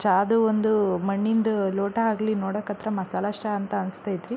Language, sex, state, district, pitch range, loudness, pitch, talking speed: Kannada, female, Karnataka, Belgaum, 195-220 Hz, -25 LUFS, 205 Hz, 135 wpm